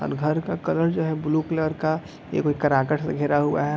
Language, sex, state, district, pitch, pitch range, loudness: Hindi, male, Bihar, East Champaran, 155 Hz, 145-160 Hz, -24 LUFS